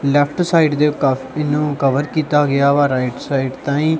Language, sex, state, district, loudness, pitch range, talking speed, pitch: Punjabi, male, Punjab, Kapurthala, -17 LUFS, 140-150 Hz, 180 wpm, 145 Hz